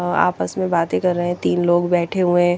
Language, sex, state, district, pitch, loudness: Hindi, female, Chandigarh, Chandigarh, 175 Hz, -19 LUFS